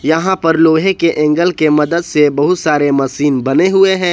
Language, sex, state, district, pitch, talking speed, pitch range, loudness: Hindi, male, Jharkhand, Ranchi, 160 Hz, 205 wpm, 150-175 Hz, -12 LUFS